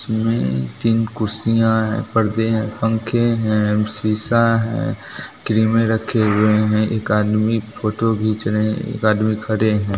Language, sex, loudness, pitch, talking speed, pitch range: Bhojpuri, male, -18 LUFS, 110 Hz, 145 wpm, 105-115 Hz